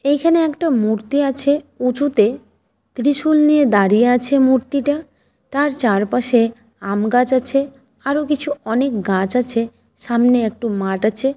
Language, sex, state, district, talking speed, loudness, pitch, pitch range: Bengali, female, West Bengal, Malda, 120 wpm, -17 LUFS, 255 Hz, 230-285 Hz